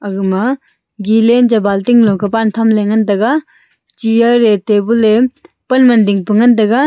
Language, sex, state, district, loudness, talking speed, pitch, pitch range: Wancho, female, Arunachal Pradesh, Longding, -12 LUFS, 155 wpm, 225 Hz, 210-240 Hz